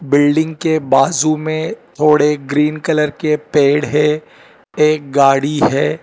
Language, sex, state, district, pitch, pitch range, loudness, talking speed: Hindi, male, Telangana, Hyderabad, 150 Hz, 145-155 Hz, -15 LUFS, 130 wpm